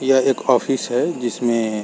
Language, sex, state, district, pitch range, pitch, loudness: Hindi, male, Uttar Pradesh, Varanasi, 115-130 Hz, 120 Hz, -19 LUFS